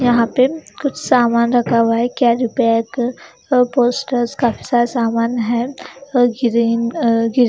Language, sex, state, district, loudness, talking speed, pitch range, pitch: Hindi, female, Haryana, Charkhi Dadri, -16 LUFS, 150 wpm, 235-250 Hz, 240 Hz